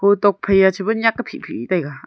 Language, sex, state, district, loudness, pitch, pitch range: Wancho, female, Arunachal Pradesh, Longding, -17 LUFS, 200 Hz, 190-220 Hz